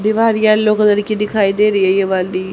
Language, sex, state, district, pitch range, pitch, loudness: Hindi, female, Haryana, Rohtak, 195-215 Hz, 210 Hz, -14 LUFS